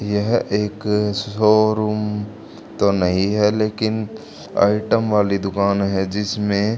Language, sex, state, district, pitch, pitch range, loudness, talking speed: Hindi, male, Haryana, Charkhi Dadri, 105 Hz, 100-105 Hz, -19 LUFS, 105 wpm